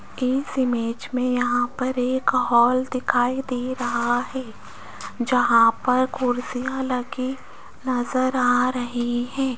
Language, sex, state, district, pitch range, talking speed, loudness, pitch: Hindi, female, Rajasthan, Jaipur, 245-255 Hz, 120 wpm, -22 LUFS, 250 Hz